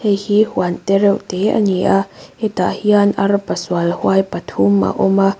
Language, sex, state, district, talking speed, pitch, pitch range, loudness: Mizo, female, Mizoram, Aizawl, 155 wpm, 195 Hz, 180-205 Hz, -16 LUFS